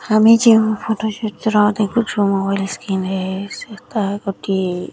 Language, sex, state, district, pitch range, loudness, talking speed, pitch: Odia, male, Odisha, Nuapada, 195-220 Hz, -17 LUFS, 145 wpm, 210 Hz